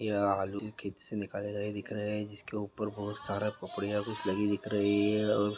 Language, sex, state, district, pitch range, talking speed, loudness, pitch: Hindi, male, Bihar, East Champaran, 100-105 Hz, 225 wpm, -34 LUFS, 105 Hz